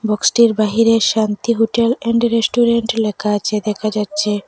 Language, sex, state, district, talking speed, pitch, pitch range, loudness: Bengali, female, Assam, Hailakandi, 145 wpm, 220 Hz, 210-230 Hz, -16 LUFS